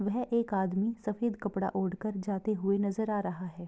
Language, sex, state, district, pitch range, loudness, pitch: Hindi, female, Bihar, Begusarai, 195-215 Hz, -32 LUFS, 200 Hz